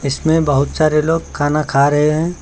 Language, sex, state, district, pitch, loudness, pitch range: Hindi, male, Uttar Pradesh, Lucknow, 150 Hz, -15 LUFS, 145-160 Hz